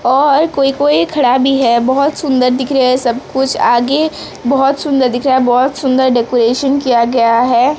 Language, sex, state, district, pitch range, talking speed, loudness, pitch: Hindi, female, Odisha, Sambalpur, 245-280 Hz, 195 wpm, -12 LUFS, 260 Hz